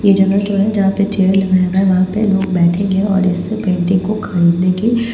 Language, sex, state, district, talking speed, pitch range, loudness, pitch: Hindi, female, Bihar, Patna, 255 wpm, 185-200 Hz, -14 LUFS, 195 Hz